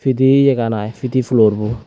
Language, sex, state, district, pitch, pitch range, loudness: Chakma, female, Tripura, West Tripura, 120 Hz, 110-130 Hz, -15 LUFS